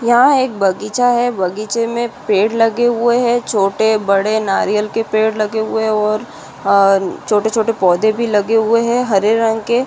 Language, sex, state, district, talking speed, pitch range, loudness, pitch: Hindi, female, Maharashtra, Aurangabad, 175 wpm, 210-235 Hz, -15 LUFS, 220 Hz